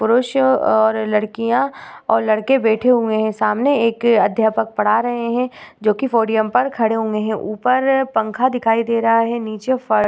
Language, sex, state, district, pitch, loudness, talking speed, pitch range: Hindi, female, Uttar Pradesh, Budaun, 230 Hz, -17 LUFS, 165 wpm, 220-250 Hz